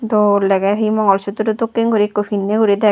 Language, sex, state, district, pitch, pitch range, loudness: Chakma, female, Tripura, West Tripura, 210 Hz, 200-220 Hz, -16 LUFS